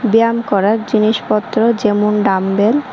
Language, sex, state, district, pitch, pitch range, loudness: Bengali, male, Tripura, West Tripura, 215 Hz, 210-230 Hz, -14 LUFS